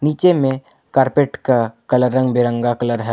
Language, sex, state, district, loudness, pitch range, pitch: Hindi, male, Jharkhand, Ranchi, -17 LUFS, 120-135 Hz, 130 Hz